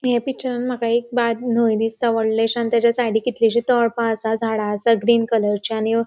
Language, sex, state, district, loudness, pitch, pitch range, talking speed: Konkani, female, Goa, North and South Goa, -19 LUFS, 230 Hz, 225-240 Hz, 170 wpm